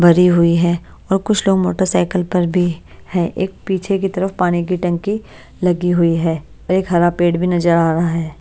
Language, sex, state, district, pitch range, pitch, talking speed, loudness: Hindi, female, Bihar, Patna, 170-190 Hz, 175 Hz, 200 wpm, -16 LUFS